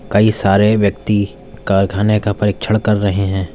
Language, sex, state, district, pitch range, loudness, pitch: Hindi, male, Uttar Pradesh, Lalitpur, 100-105 Hz, -15 LUFS, 105 Hz